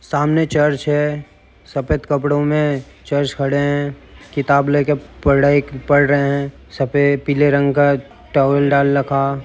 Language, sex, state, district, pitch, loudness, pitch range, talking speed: Hindi, male, Uttar Pradesh, Jyotiba Phule Nagar, 140 Hz, -17 LUFS, 140-145 Hz, 145 wpm